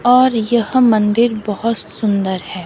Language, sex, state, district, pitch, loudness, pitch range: Hindi, female, Himachal Pradesh, Shimla, 225 Hz, -15 LUFS, 210-235 Hz